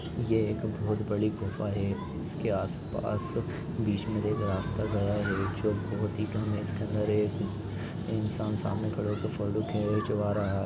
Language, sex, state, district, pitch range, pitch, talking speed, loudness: Hindi, male, Chhattisgarh, Rajnandgaon, 105-110 Hz, 105 Hz, 100 wpm, -31 LUFS